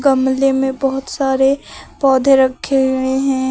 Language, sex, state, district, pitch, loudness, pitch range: Hindi, female, Uttar Pradesh, Lucknow, 270 Hz, -15 LUFS, 265-270 Hz